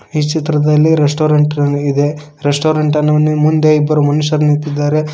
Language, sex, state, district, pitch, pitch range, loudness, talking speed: Kannada, male, Karnataka, Koppal, 150 Hz, 150-155 Hz, -13 LUFS, 130 wpm